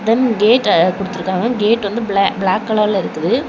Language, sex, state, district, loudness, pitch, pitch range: Tamil, female, Tamil Nadu, Kanyakumari, -15 LUFS, 210 Hz, 195-225 Hz